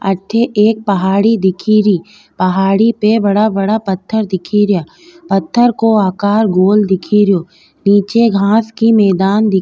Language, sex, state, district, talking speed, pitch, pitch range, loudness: Rajasthani, female, Rajasthan, Nagaur, 150 wpm, 205 Hz, 195-220 Hz, -12 LUFS